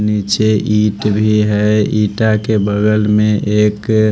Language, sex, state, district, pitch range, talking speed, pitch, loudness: Hindi, male, Odisha, Malkangiri, 105-110 Hz, 130 wpm, 105 Hz, -14 LUFS